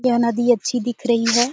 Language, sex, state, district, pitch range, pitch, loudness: Hindi, female, Chhattisgarh, Sarguja, 235-245 Hz, 240 Hz, -19 LUFS